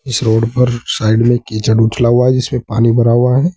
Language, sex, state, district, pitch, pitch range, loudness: Hindi, male, Uttar Pradesh, Saharanpur, 120 Hz, 115-125 Hz, -13 LUFS